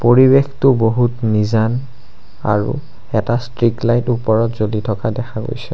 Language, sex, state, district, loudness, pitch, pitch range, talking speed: Assamese, male, Assam, Sonitpur, -16 LUFS, 115 Hz, 110-125 Hz, 125 wpm